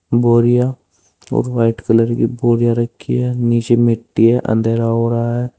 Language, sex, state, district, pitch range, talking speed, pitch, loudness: Hindi, male, Uttar Pradesh, Saharanpur, 115-120 Hz, 160 wpm, 120 Hz, -15 LUFS